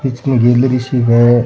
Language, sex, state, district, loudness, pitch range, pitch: Rajasthani, male, Rajasthan, Churu, -12 LUFS, 120-130 Hz, 125 Hz